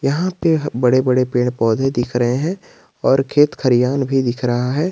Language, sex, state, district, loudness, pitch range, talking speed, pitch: Hindi, male, Jharkhand, Garhwa, -17 LUFS, 125-145 Hz, 195 wpm, 130 Hz